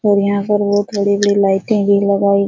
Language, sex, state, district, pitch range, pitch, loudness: Hindi, female, Bihar, Supaul, 200-205 Hz, 200 Hz, -15 LUFS